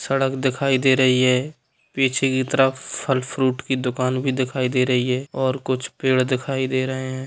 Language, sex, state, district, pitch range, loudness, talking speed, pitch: Hindi, male, Bihar, Sitamarhi, 130-135 Hz, -21 LUFS, 200 wpm, 130 Hz